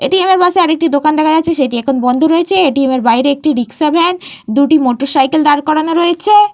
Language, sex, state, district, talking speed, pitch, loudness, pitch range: Bengali, female, Jharkhand, Jamtara, 250 wpm, 310 Hz, -11 LUFS, 275-335 Hz